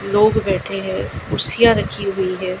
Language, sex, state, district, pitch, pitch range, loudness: Hindi, female, Gujarat, Gandhinagar, 195 Hz, 190-210 Hz, -18 LUFS